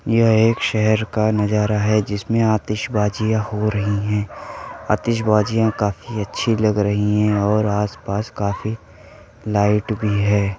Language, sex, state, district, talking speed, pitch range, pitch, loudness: Hindi, male, Uttar Pradesh, Muzaffarnagar, 135 wpm, 105-110 Hz, 105 Hz, -19 LUFS